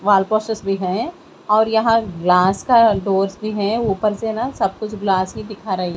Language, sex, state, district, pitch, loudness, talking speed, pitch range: Hindi, female, Haryana, Jhajjar, 210 Hz, -18 LUFS, 200 wpm, 195-220 Hz